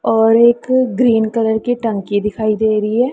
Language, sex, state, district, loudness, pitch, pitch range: Hindi, male, Punjab, Pathankot, -15 LUFS, 225 Hz, 215-240 Hz